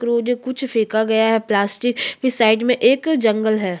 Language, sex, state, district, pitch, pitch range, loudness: Hindi, female, Chhattisgarh, Sukma, 225 Hz, 220-250 Hz, -18 LUFS